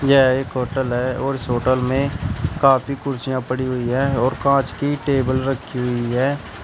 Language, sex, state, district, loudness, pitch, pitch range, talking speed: Hindi, male, Uttar Pradesh, Shamli, -20 LUFS, 130 Hz, 125-135 Hz, 180 wpm